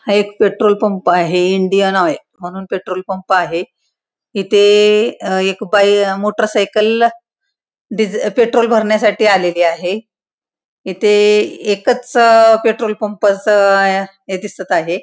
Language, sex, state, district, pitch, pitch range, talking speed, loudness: Marathi, female, Maharashtra, Pune, 205 Hz, 190-220 Hz, 115 wpm, -13 LUFS